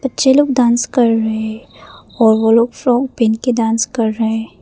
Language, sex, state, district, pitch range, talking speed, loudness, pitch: Hindi, female, Arunachal Pradesh, Papum Pare, 225-250 Hz, 205 wpm, -14 LUFS, 230 Hz